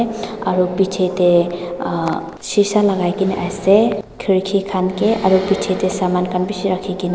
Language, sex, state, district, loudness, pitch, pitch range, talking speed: Nagamese, female, Nagaland, Dimapur, -17 LUFS, 190 Hz, 180-200 Hz, 150 wpm